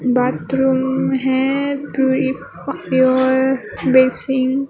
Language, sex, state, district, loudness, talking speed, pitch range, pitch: Hindi, female, Maharashtra, Gondia, -17 LUFS, 65 wpm, 260-265 Hz, 265 Hz